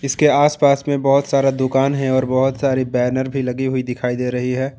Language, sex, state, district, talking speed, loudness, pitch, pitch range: Hindi, male, Jharkhand, Ranchi, 240 wpm, -17 LUFS, 135 Hz, 130-140 Hz